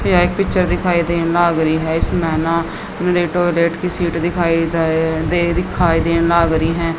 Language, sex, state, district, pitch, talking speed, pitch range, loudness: Hindi, female, Haryana, Jhajjar, 170 Hz, 135 wpm, 165-175 Hz, -16 LUFS